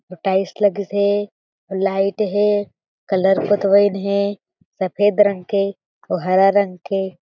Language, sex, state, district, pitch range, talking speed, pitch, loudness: Chhattisgarhi, female, Chhattisgarh, Jashpur, 190-205 Hz, 135 wpm, 200 Hz, -18 LUFS